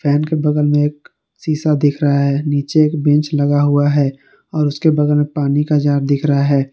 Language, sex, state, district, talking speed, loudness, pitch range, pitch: Hindi, male, Jharkhand, Garhwa, 215 wpm, -15 LUFS, 145-150 Hz, 145 Hz